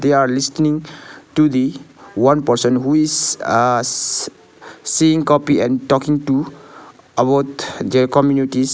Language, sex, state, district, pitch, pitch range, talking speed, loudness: English, male, Sikkim, Gangtok, 140 Hz, 130-150 Hz, 130 wpm, -16 LUFS